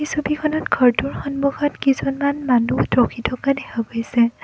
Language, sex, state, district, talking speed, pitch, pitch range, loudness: Assamese, female, Assam, Kamrup Metropolitan, 135 wpm, 275 Hz, 245-290 Hz, -20 LUFS